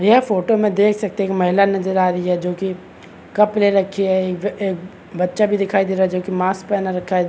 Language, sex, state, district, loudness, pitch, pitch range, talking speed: Hindi, male, Uttar Pradesh, Varanasi, -18 LUFS, 190 Hz, 185-205 Hz, 255 wpm